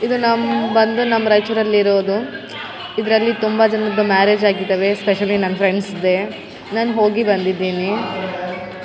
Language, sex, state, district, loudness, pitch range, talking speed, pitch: Kannada, female, Karnataka, Raichur, -17 LUFS, 190-220 Hz, 120 wpm, 205 Hz